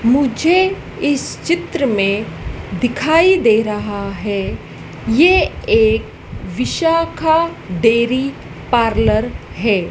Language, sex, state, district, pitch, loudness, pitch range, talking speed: Hindi, female, Madhya Pradesh, Dhar, 245 Hz, -16 LUFS, 210-325 Hz, 85 wpm